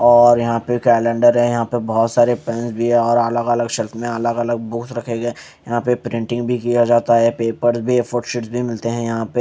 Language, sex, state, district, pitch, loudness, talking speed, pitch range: Hindi, male, Haryana, Charkhi Dadri, 120 Hz, -17 LUFS, 255 wpm, 115-120 Hz